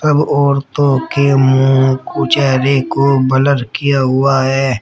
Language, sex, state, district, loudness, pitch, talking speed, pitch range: Hindi, female, Uttar Pradesh, Shamli, -13 LUFS, 135 Hz, 135 wpm, 130-140 Hz